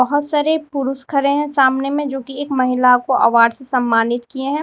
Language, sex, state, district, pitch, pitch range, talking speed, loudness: Hindi, female, Uttar Pradesh, Lalitpur, 270 Hz, 250-285 Hz, 220 wpm, -17 LUFS